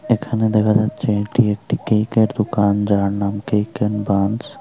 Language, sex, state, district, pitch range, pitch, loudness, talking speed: Bengali, female, Tripura, Unakoti, 100-110 Hz, 105 Hz, -18 LUFS, 170 wpm